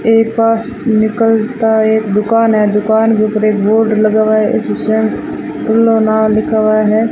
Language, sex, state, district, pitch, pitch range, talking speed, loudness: Hindi, female, Rajasthan, Bikaner, 220 Hz, 215-225 Hz, 150 wpm, -12 LUFS